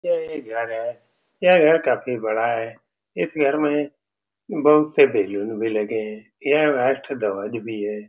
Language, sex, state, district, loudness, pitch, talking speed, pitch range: Hindi, male, Bihar, Saran, -21 LUFS, 120 Hz, 180 wpm, 110-150 Hz